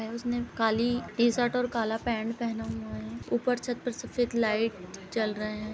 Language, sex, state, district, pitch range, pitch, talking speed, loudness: Hindi, female, Uttar Pradesh, Etah, 215-240 Hz, 230 Hz, 190 wpm, -30 LUFS